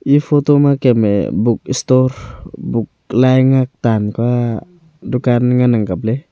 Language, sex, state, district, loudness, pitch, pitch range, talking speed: Wancho, male, Arunachal Pradesh, Longding, -14 LUFS, 125 Hz, 115-135 Hz, 140 wpm